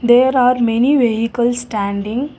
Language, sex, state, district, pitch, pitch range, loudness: English, female, Karnataka, Bangalore, 240 Hz, 225-250 Hz, -15 LUFS